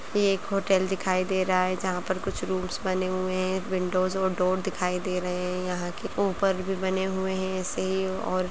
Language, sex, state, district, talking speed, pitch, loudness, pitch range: Kumaoni, female, Uttarakhand, Uttarkashi, 225 wpm, 185 Hz, -27 LUFS, 185-190 Hz